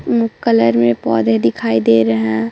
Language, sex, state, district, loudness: Hindi, female, Chhattisgarh, Raipur, -14 LUFS